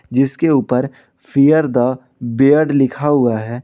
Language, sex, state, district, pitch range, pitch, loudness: Hindi, male, Jharkhand, Ranchi, 125-145 Hz, 135 Hz, -15 LUFS